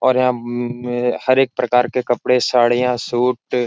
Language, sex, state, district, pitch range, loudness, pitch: Hindi, male, Bihar, Jahanabad, 120-125 Hz, -17 LUFS, 125 Hz